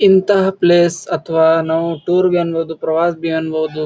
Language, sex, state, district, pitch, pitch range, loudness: Kannada, male, Karnataka, Bijapur, 165 Hz, 160-175 Hz, -15 LUFS